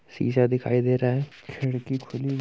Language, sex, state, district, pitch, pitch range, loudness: Hindi, male, Bihar, Muzaffarpur, 125 Hz, 125-135 Hz, -25 LUFS